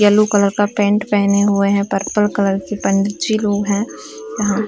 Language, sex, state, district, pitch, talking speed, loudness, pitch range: Hindi, female, Uttar Pradesh, Varanasi, 205 Hz, 180 wpm, -16 LUFS, 200-210 Hz